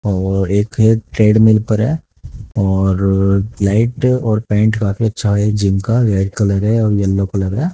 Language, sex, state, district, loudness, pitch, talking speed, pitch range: Hindi, male, Haryana, Jhajjar, -15 LUFS, 105 Hz, 160 wpm, 100-110 Hz